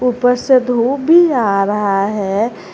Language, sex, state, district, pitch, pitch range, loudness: Hindi, female, Jharkhand, Garhwa, 235 Hz, 200-255 Hz, -14 LUFS